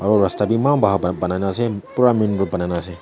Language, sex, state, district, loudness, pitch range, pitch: Nagamese, male, Nagaland, Kohima, -19 LUFS, 90-115 Hz, 100 Hz